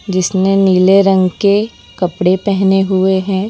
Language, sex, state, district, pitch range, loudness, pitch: Hindi, female, Gujarat, Valsad, 185-195 Hz, -12 LUFS, 190 Hz